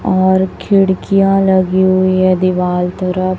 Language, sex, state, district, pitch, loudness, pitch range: Hindi, female, Chhattisgarh, Raipur, 185 Hz, -13 LUFS, 185-190 Hz